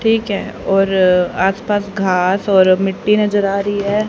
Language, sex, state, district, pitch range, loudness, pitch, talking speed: Hindi, female, Haryana, Rohtak, 190-205 Hz, -15 LUFS, 195 Hz, 160 wpm